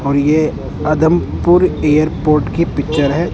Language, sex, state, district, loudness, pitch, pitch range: Hindi, male, Punjab, Kapurthala, -14 LUFS, 155 Hz, 150-165 Hz